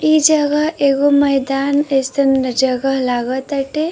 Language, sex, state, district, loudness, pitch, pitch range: Bhojpuri, female, Uttar Pradesh, Varanasi, -15 LUFS, 275 Hz, 265-290 Hz